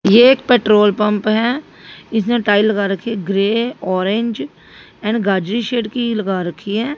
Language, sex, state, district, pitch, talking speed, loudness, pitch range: Hindi, female, Haryana, Jhajjar, 215 Hz, 165 wpm, -16 LUFS, 200-235 Hz